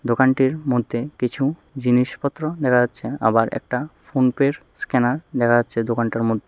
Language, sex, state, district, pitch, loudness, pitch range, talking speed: Bengali, male, Tripura, West Tripura, 125 Hz, -21 LUFS, 120-140 Hz, 130 wpm